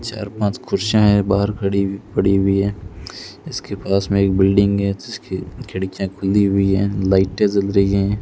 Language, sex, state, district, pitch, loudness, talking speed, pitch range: Hindi, male, Rajasthan, Bikaner, 100 Hz, -18 LUFS, 180 wpm, 95-100 Hz